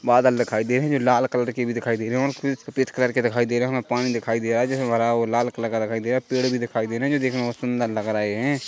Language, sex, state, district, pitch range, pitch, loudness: Hindi, male, Chhattisgarh, Korba, 115-130 Hz, 120 Hz, -23 LUFS